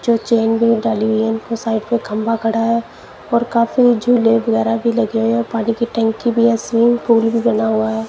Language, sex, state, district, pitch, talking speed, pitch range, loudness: Hindi, female, Punjab, Kapurthala, 230 Hz, 230 wpm, 225-235 Hz, -16 LUFS